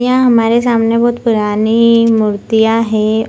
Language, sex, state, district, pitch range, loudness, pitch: Hindi, female, Bihar, Purnia, 220-235 Hz, -11 LUFS, 225 Hz